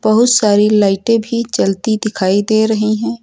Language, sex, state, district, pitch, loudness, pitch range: Hindi, female, Uttar Pradesh, Lucknow, 215 Hz, -13 LUFS, 200-225 Hz